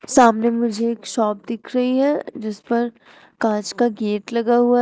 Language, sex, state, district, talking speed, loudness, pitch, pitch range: Hindi, female, Uttar Pradesh, Shamli, 185 wpm, -20 LUFS, 235 Hz, 220-240 Hz